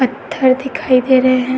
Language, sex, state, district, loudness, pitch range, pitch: Hindi, female, Uttar Pradesh, Etah, -14 LUFS, 255-270 Hz, 260 Hz